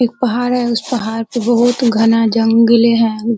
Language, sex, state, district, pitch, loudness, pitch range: Hindi, female, Uttar Pradesh, Hamirpur, 235 Hz, -13 LUFS, 225-245 Hz